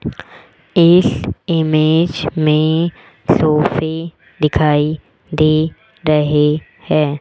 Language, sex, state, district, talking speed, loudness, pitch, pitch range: Hindi, female, Rajasthan, Jaipur, 65 wpm, -15 LUFS, 155 Hz, 150-165 Hz